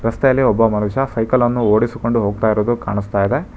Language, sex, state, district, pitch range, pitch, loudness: Kannada, male, Karnataka, Bangalore, 105-120 Hz, 115 Hz, -17 LUFS